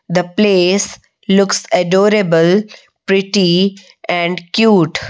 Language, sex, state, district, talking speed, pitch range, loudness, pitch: English, female, Odisha, Malkangiri, 80 wpm, 175-200 Hz, -13 LUFS, 190 Hz